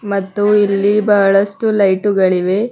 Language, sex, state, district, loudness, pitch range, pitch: Kannada, female, Karnataka, Bidar, -14 LUFS, 195-210 Hz, 200 Hz